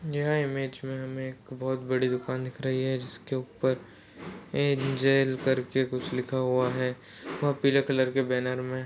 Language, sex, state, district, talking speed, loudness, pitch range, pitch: Marathi, male, Maharashtra, Sindhudurg, 175 wpm, -29 LUFS, 130-135 Hz, 130 Hz